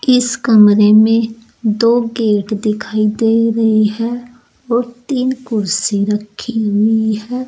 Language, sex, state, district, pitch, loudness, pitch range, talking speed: Hindi, female, Uttar Pradesh, Saharanpur, 225 Hz, -14 LUFS, 215-240 Hz, 120 wpm